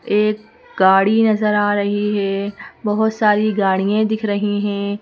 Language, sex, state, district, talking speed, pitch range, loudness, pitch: Hindi, female, Madhya Pradesh, Bhopal, 145 wpm, 200-215 Hz, -17 LUFS, 205 Hz